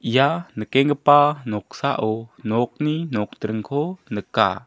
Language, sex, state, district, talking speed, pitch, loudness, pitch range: Garo, male, Meghalaya, South Garo Hills, 75 wpm, 130 Hz, -21 LUFS, 110-145 Hz